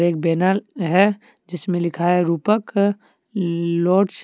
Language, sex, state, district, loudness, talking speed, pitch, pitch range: Hindi, male, Jharkhand, Deoghar, -20 LUFS, 125 wpm, 180 Hz, 170-200 Hz